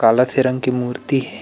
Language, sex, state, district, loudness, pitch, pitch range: Chhattisgarhi, male, Chhattisgarh, Rajnandgaon, -18 LUFS, 130 Hz, 125-130 Hz